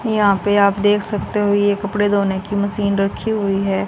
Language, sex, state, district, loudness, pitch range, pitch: Hindi, female, Haryana, Jhajjar, -18 LUFS, 200-205 Hz, 205 Hz